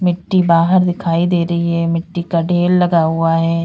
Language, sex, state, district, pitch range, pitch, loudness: Hindi, female, Uttar Pradesh, Lalitpur, 165-180 Hz, 170 Hz, -15 LUFS